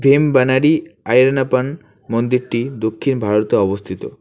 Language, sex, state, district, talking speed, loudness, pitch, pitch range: Bengali, male, West Bengal, Alipurduar, 85 wpm, -17 LUFS, 125 Hz, 110-135 Hz